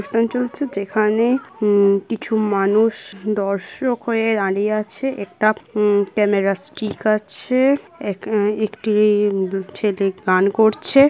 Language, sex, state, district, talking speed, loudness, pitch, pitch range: Bengali, female, West Bengal, Kolkata, 90 wpm, -19 LUFS, 215 Hz, 200-225 Hz